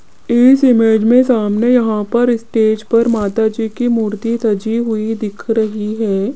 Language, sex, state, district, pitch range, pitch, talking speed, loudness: Hindi, female, Rajasthan, Jaipur, 215-235 Hz, 225 Hz, 150 wpm, -14 LUFS